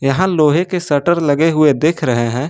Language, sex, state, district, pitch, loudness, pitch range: Hindi, male, Jharkhand, Ranchi, 150 Hz, -14 LUFS, 135-165 Hz